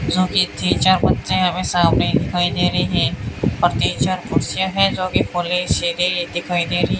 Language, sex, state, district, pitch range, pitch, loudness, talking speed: Hindi, male, Rajasthan, Bikaner, 170-185 Hz, 175 Hz, -18 LUFS, 190 wpm